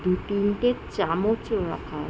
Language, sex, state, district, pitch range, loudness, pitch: Bengali, female, West Bengal, Jhargram, 195-220 Hz, -26 LUFS, 200 Hz